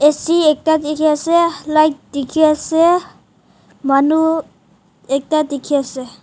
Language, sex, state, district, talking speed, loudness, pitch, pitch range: Nagamese, female, Nagaland, Dimapur, 75 wpm, -15 LUFS, 300 Hz, 275-320 Hz